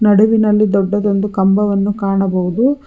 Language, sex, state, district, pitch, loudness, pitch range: Kannada, female, Karnataka, Bangalore, 205 Hz, -14 LUFS, 195-215 Hz